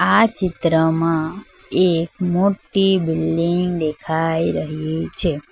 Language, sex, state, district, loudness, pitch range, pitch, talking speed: Gujarati, female, Gujarat, Valsad, -19 LUFS, 160-185 Hz, 165 Hz, 85 wpm